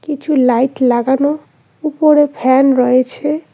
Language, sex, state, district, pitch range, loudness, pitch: Bengali, female, West Bengal, Cooch Behar, 255-300 Hz, -13 LUFS, 275 Hz